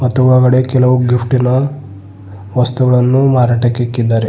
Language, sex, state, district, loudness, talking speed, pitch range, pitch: Kannada, male, Karnataka, Bidar, -12 LUFS, 100 wpm, 120-130 Hz, 125 Hz